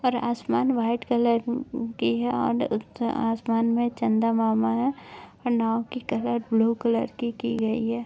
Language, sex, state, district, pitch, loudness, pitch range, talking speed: Hindi, female, Uttar Pradesh, Etah, 235 Hz, -25 LUFS, 230-240 Hz, 165 wpm